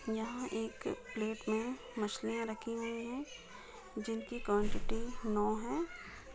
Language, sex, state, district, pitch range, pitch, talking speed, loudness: Hindi, female, Bihar, Jahanabad, 220-250 Hz, 230 Hz, 125 wpm, -39 LUFS